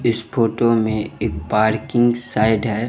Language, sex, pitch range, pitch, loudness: Bhojpuri, male, 110-120 Hz, 115 Hz, -19 LUFS